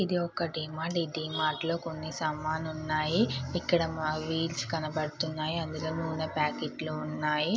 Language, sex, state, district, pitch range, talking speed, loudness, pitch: Telugu, female, Andhra Pradesh, Guntur, 155-165 Hz, 135 wpm, -32 LUFS, 160 Hz